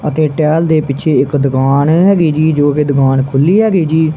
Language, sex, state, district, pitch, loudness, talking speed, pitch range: Punjabi, male, Punjab, Kapurthala, 150 Hz, -11 LUFS, 200 wpm, 140-160 Hz